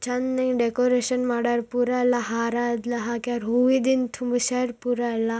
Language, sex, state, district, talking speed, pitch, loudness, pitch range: Kannada, female, Karnataka, Bijapur, 120 wpm, 245 Hz, -24 LUFS, 235-250 Hz